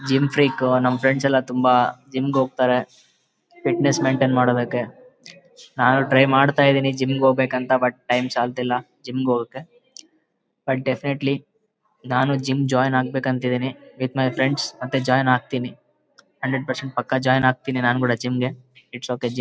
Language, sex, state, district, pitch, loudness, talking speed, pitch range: Kannada, male, Karnataka, Bellary, 130 Hz, -21 LUFS, 160 wpm, 125-135 Hz